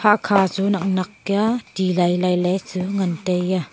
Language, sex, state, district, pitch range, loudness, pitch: Wancho, female, Arunachal Pradesh, Longding, 180-200 Hz, -20 LUFS, 185 Hz